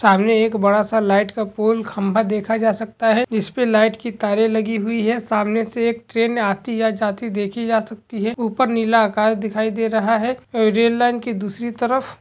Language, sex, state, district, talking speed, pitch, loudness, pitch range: Hindi, male, Bihar, Samastipur, 205 wpm, 225 Hz, -19 LUFS, 215-230 Hz